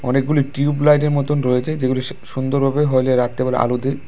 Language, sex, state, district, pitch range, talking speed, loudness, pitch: Bengali, male, Tripura, West Tripura, 130-145 Hz, 160 wpm, -18 LUFS, 135 Hz